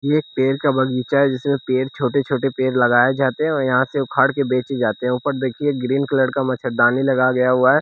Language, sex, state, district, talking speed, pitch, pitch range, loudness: Hindi, male, Bihar, West Champaran, 230 wpm, 130 Hz, 125-140 Hz, -18 LUFS